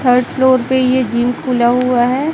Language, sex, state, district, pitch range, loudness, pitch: Hindi, female, Chhattisgarh, Raipur, 245-260 Hz, -14 LUFS, 250 Hz